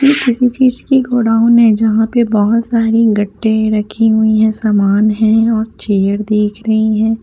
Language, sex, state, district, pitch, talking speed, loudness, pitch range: Hindi, female, Haryana, Jhajjar, 220 Hz, 175 wpm, -12 LUFS, 215-230 Hz